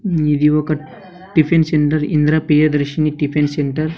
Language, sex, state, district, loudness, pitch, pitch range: Telugu, male, Andhra Pradesh, Sri Satya Sai, -16 LUFS, 155 Hz, 150-155 Hz